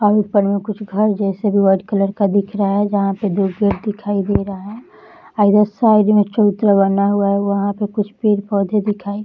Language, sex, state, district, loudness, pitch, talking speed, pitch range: Hindi, female, Bihar, Saharsa, -16 LUFS, 205 Hz, 235 wpm, 200-210 Hz